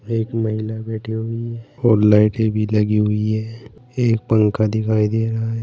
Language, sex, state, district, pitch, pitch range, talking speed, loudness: Hindi, male, Uttar Pradesh, Saharanpur, 110 Hz, 110-115 Hz, 170 wpm, -19 LUFS